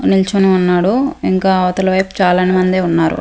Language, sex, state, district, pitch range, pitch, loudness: Telugu, female, Andhra Pradesh, Manyam, 180-190 Hz, 185 Hz, -13 LUFS